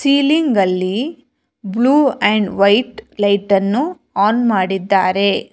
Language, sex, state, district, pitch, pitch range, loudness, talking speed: Kannada, female, Karnataka, Bangalore, 210 Hz, 195-265 Hz, -15 LUFS, 75 wpm